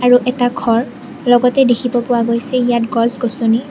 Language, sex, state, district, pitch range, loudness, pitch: Assamese, female, Assam, Kamrup Metropolitan, 235-250 Hz, -15 LUFS, 245 Hz